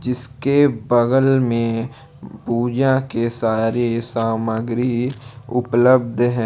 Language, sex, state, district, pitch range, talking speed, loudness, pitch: Hindi, male, Jharkhand, Palamu, 115-130 Hz, 85 wpm, -19 LUFS, 120 Hz